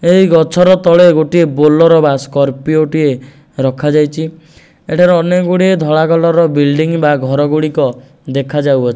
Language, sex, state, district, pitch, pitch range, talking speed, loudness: Odia, male, Odisha, Nuapada, 155 Hz, 145-165 Hz, 135 wpm, -11 LUFS